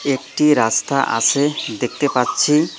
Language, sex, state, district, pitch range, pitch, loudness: Bengali, male, West Bengal, Cooch Behar, 130-150 Hz, 140 Hz, -17 LUFS